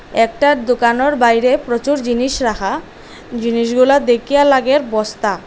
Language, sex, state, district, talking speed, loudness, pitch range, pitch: Bengali, female, Assam, Hailakandi, 110 wpm, -14 LUFS, 230-275 Hz, 245 Hz